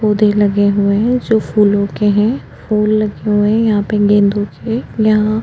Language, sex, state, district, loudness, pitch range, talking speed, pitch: Hindi, female, Maharashtra, Chandrapur, -14 LUFS, 205-215 Hz, 200 wpm, 210 Hz